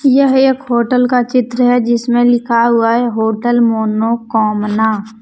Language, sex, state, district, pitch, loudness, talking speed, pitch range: Hindi, female, Jharkhand, Deoghar, 235 Hz, -13 LUFS, 150 wpm, 220-245 Hz